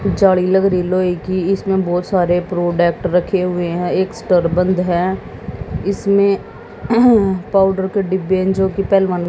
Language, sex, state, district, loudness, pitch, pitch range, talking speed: Hindi, female, Haryana, Jhajjar, -16 LUFS, 185 Hz, 180-195 Hz, 155 wpm